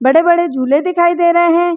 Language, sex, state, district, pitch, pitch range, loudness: Hindi, female, Chhattisgarh, Rajnandgaon, 345 Hz, 315-345 Hz, -12 LUFS